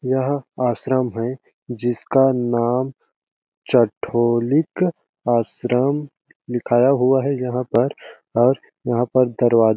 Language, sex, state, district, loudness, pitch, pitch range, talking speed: Hindi, male, Chhattisgarh, Balrampur, -20 LUFS, 125 Hz, 120-135 Hz, 100 wpm